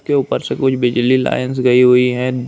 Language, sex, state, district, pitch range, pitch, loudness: Hindi, male, Uttar Pradesh, Hamirpur, 125-130 Hz, 125 Hz, -14 LUFS